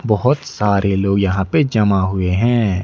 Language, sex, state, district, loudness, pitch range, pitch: Hindi, male, Odisha, Nuapada, -16 LUFS, 95-115 Hz, 100 Hz